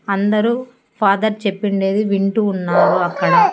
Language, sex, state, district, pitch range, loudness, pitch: Telugu, female, Andhra Pradesh, Annamaya, 195-220 Hz, -17 LUFS, 205 Hz